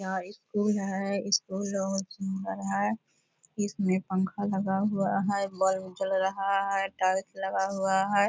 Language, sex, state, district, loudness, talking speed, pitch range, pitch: Hindi, female, Bihar, Purnia, -29 LUFS, 150 wpm, 190-200 Hz, 195 Hz